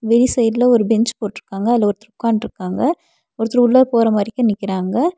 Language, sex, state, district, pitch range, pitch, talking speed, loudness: Tamil, female, Tamil Nadu, Nilgiris, 210-245 Hz, 225 Hz, 140 wpm, -17 LUFS